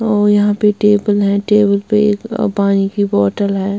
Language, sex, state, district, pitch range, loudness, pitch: Hindi, female, Bihar, West Champaran, 200-210 Hz, -14 LUFS, 205 Hz